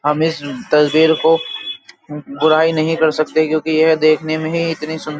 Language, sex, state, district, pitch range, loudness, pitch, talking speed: Hindi, male, Uttar Pradesh, Jyotiba Phule Nagar, 150-160 Hz, -15 LUFS, 155 Hz, 185 wpm